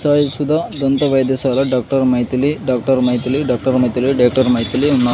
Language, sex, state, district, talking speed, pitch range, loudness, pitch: Telugu, male, Andhra Pradesh, Sri Satya Sai, 150 wpm, 125-140 Hz, -16 LUFS, 130 Hz